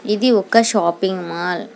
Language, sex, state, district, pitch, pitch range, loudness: Telugu, female, Telangana, Hyderabad, 205 Hz, 180-230 Hz, -17 LUFS